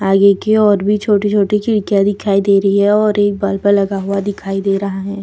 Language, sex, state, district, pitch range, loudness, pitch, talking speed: Hindi, female, Bihar, Vaishali, 195-205 Hz, -14 LUFS, 200 Hz, 220 wpm